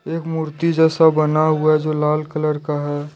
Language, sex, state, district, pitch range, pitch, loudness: Hindi, male, Jharkhand, Deoghar, 150-160 Hz, 155 Hz, -18 LUFS